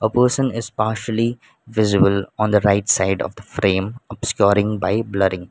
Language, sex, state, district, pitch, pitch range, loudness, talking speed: English, male, Sikkim, Gangtok, 105 Hz, 100-115 Hz, -19 LUFS, 165 wpm